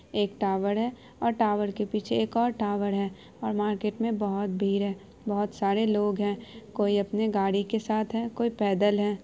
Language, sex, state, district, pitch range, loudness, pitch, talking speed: Hindi, female, Bihar, Araria, 200-220 Hz, -28 LUFS, 205 Hz, 195 wpm